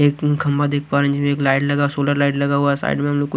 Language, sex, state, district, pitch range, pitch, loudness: Hindi, male, Haryana, Rohtak, 140-145 Hz, 145 Hz, -18 LUFS